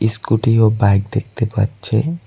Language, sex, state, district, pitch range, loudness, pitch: Bengali, male, West Bengal, Cooch Behar, 105-115 Hz, -17 LUFS, 110 Hz